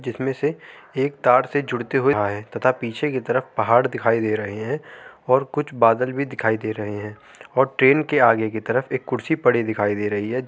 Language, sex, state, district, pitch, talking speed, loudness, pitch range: Hindi, male, Uttar Pradesh, Hamirpur, 125 Hz, 235 wpm, -21 LUFS, 110-135 Hz